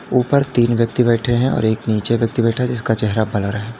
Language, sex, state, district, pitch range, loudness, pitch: Hindi, male, Uttar Pradesh, Lalitpur, 110-125 Hz, -17 LUFS, 115 Hz